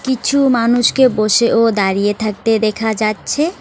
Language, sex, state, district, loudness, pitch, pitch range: Bengali, female, West Bengal, Alipurduar, -14 LUFS, 225 Hz, 215-255 Hz